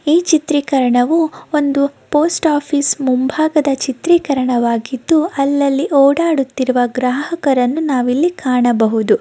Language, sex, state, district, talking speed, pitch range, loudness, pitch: Kannada, female, Karnataka, Belgaum, 85 wpm, 255-310 Hz, -15 LUFS, 280 Hz